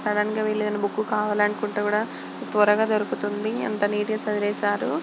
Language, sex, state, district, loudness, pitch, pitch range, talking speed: Telugu, female, Andhra Pradesh, Guntur, -24 LUFS, 210 Hz, 210-215 Hz, 155 wpm